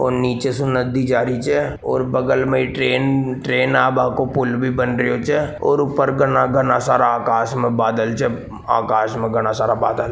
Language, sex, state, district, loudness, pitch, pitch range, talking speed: Marwari, male, Rajasthan, Nagaur, -18 LUFS, 125 Hz, 115-130 Hz, 200 wpm